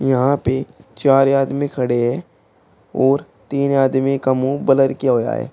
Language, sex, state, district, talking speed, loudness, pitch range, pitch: Hindi, male, Uttar Pradesh, Shamli, 165 wpm, -17 LUFS, 130-140 Hz, 135 Hz